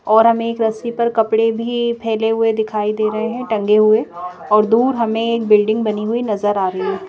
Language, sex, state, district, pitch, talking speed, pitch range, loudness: Hindi, female, Madhya Pradesh, Bhopal, 225 Hz, 220 wpm, 215-230 Hz, -17 LUFS